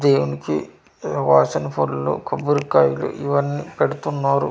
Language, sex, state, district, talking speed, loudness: Telugu, male, Andhra Pradesh, Manyam, 80 wpm, -20 LUFS